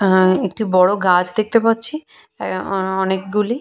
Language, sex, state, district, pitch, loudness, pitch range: Bengali, female, West Bengal, Purulia, 195 Hz, -17 LUFS, 185-220 Hz